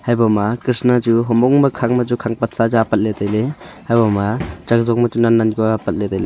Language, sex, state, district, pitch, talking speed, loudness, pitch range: Wancho, male, Arunachal Pradesh, Longding, 115 Hz, 250 wpm, -16 LUFS, 110-120 Hz